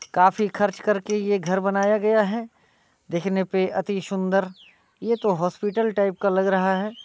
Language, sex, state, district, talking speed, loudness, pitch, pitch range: Hindi, male, Bihar, Muzaffarpur, 170 wpm, -23 LUFS, 200 Hz, 190-210 Hz